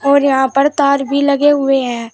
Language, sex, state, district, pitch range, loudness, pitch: Hindi, female, Uttar Pradesh, Shamli, 270-280 Hz, -13 LUFS, 280 Hz